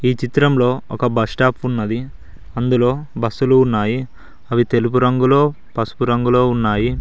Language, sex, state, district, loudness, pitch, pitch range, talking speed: Telugu, male, Telangana, Mahabubabad, -17 LUFS, 125 Hz, 120-130 Hz, 120 wpm